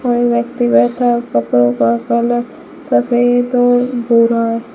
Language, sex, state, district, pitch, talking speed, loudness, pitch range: Hindi, female, Rajasthan, Bikaner, 240 Hz, 125 wpm, -14 LUFS, 230-245 Hz